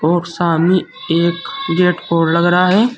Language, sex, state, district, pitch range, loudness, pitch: Hindi, male, Uttar Pradesh, Saharanpur, 170-185 Hz, -15 LUFS, 175 Hz